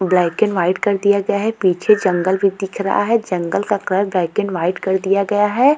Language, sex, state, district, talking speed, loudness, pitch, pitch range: Hindi, female, Uttar Pradesh, Jalaun, 250 wpm, -17 LUFS, 195 Hz, 185-205 Hz